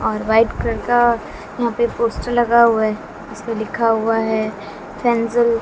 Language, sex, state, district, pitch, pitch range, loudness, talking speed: Hindi, female, Bihar, West Champaran, 230 Hz, 220-235 Hz, -18 LUFS, 160 wpm